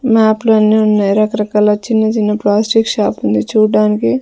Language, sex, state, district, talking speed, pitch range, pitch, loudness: Telugu, female, Andhra Pradesh, Sri Satya Sai, 130 wpm, 210-220 Hz, 215 Hz, -12 LUFS